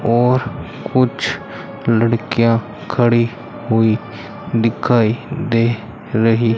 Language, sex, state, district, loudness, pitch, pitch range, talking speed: Hindi, male, Rajasthan, Bikaner, -17 LUFS, 115 Hz, 115-125 Hz, 90 wpm